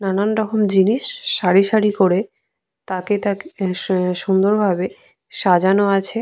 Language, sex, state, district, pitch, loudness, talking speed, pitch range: Bengali, female, West Bengal, Purulia, 195 Hz, -18 LUFS, 125 wpm, 190-210 Hz